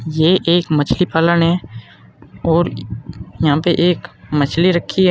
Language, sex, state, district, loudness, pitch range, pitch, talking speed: Hindi, male, Uttar Pradesh, Saharanpur, -16 LUFS, 150-175 Hz, 170 Hz, 140 wpm